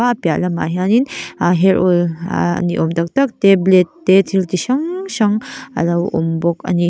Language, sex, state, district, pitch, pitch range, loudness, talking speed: Mizo, female, Mizoram, Aizawl, 185 Hz, 175-215 Hz, -16 LUFS, 185 wpm